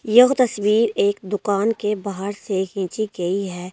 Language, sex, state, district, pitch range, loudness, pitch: Hindi, female, Delhi, New Delhi, 195-220 Hz, -21 LUFS, 205 Hz